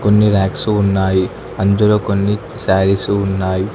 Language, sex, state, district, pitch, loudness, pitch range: Telugu, male, Telangana, Hyderabad, 100 Hz, -15 LUFS, 95-105 Hz